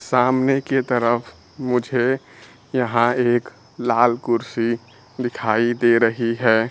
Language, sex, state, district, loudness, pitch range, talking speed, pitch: Hindi, male, Bihar, Kaimur, -20 LUFS, 115-125 Hz, 105 wpm, 120 Hz